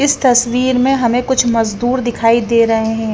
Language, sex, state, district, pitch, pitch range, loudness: Hindi, female, Haryana, Rohtak, 240 Hz, 230-255 Hz, -13 LUFS